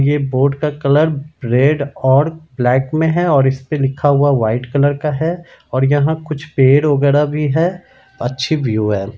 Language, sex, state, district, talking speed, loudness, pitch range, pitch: Hindi, male, Bihar, Madhepura, 175 wpm, -15 LUFS, 135-150 Hz, 145 Hz